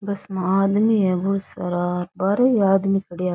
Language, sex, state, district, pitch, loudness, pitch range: Rajasthani, female, Rajasthan, Nagaur, 195 Hz, -21 LUFS, 180-200 Hz